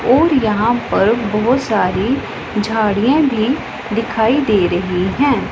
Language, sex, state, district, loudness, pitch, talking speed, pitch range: Hindi, female, Punjab, Pathankot, -16 LUFS, 225 Hz, 120 wpm, 210-255 Hz